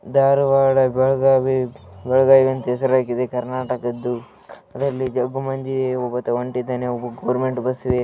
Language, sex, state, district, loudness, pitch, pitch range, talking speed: Kannada, male, Karnataka, Raichur, -20 LUFS, 130 Hz, 125-130 Hz, 95 wpm